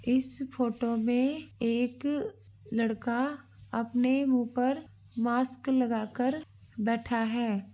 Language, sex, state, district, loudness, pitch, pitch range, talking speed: Hindi, female, Uttar Pradesh, Varanasi, -30 LUFS, 245 Hz, 230-260 Hz, 100 wpm